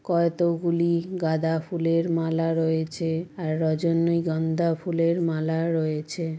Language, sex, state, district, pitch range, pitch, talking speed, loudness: Bengali, female, West Bengal, Jalpaiguri, 160-170 Hz, 165 Hz, 105 wpm, -25 LUFS